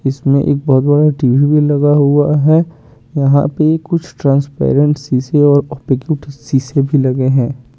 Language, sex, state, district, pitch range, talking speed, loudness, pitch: Hindi, male, Chandigarh, Chandigarh, 135-150 Hz, 115 wpm, -13 LUFS, 140 Hz